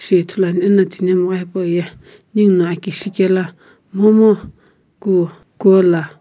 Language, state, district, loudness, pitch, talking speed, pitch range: Sumi, Nagaland, Kohima, -15 LUFS, 185 Hz, 105 wpm, 175-195 Hz